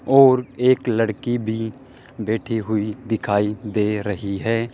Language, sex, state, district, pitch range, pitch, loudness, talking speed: Hindi, male, Rajasthan, Jaipur, 105-125 Hz, 115 Hz, -21 LUFS, 125 wpm